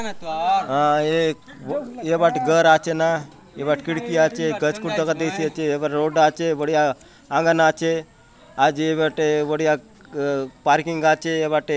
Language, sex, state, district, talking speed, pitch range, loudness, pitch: Halbi, male, Chhattisgarh, Bastar, 155 wpm, 150-165 Hz, -21 LUFS, 155 Hz